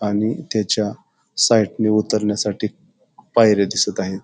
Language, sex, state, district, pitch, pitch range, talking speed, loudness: Marathi, male, Maharashtra, Pune, 105 Hz, 105-110 Hz, 100 wpm, -19 LUFS